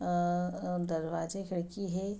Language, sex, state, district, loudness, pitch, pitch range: Hindi, female, Bihar, Saharsa, -34 LUFS, 175 Hz, 175-190 Hz